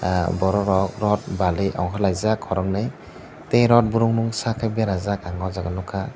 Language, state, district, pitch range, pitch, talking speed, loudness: Kokborok, Tripura, Dhalai, 95-110 Hz, 100 Hz, 145 wpm, -22 LUFS